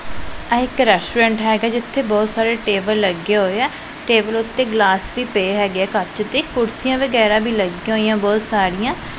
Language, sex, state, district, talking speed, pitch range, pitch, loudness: Punjabi, female, Punjab, Pathankot, 175 wpm, 205-235 Hz, 220 Hz, -17 LUFS